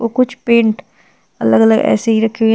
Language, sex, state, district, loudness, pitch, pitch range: Hindi, female, Uttar Pradesh, Shamli, -13 LUFS, 225 Hz, 210-235 Hz